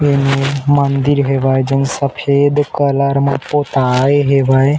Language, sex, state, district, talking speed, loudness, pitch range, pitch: Chhattisgarhi, male, Chhattisgarh, Bilaspur, 125 wpm, -14 LUFS, 135-145 Hz, 140 Hz